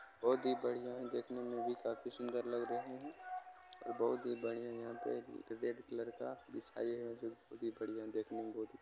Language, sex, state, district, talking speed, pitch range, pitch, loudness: Hindi, male, Bihar, Supaul, 220 wpm, 115-125 Hz, 120 Hz, -43 LUFS